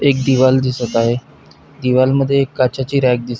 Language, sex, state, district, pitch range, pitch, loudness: Marathi, male, Maharashtra, Pune, 125-135 Hz, 130 Hz, -15 LUFS